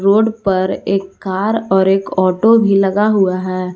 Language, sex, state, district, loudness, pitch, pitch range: Hindi, female, Jharkhand, Garhwa, -14 LUFS, 195 Hz, 190-210 Hz